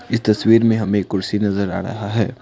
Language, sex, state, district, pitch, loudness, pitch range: Hindi, male, Assam, Kamrup Metropolitan, 105 Hz, -18 LUFS, 100-115 Hz